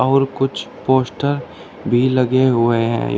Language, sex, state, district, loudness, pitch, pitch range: Hindi, male, Uttar Pradesh, Shamli, -17 LUFS, 130 Hz, 120-135 Hz